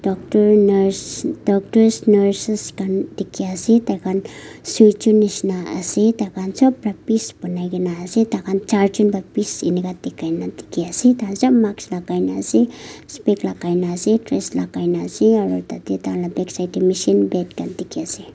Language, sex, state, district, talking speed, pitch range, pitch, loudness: Nagamese, female, Nagaland, Kohima, 170 wpm, 170-210 Hz, 190 Hz, -19 LUFS